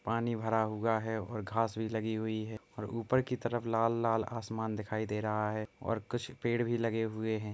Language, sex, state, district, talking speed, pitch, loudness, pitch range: Hindi, male, Uttar Pradesh, Etah, 215 wpm, 110 Hz, -34 LUFS, 110-115 Hz